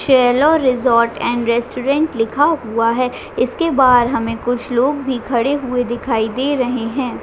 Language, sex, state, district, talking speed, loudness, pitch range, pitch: Hindi, female, Chhattisgarh, Raigarh, 160 wpm, -16 LUFS, 235-275 Hz, 250 Hz